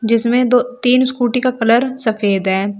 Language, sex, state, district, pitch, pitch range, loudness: Hindi, female, Uttar Pradesh, Shamli, 240 Hz, 220-250 Hz, -15 LUFS